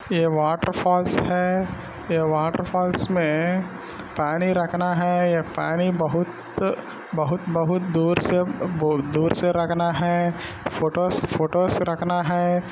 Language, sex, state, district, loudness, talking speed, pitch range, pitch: Hindi, male, Maharashtra, Solapur, -23 LUFS, 125 wpm, 165-180 Hz, 175 Hz